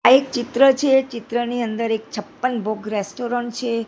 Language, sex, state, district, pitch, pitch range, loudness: Gujarati, female, Gujarat, Gandhinagar, 240 Hz, 225-255 Hz, -20 LUFS